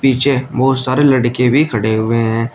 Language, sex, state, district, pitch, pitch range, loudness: Hindi, male, Uttar Pradesh, Shamli, 125 Hz, 115-135 Hz, -14 LUFS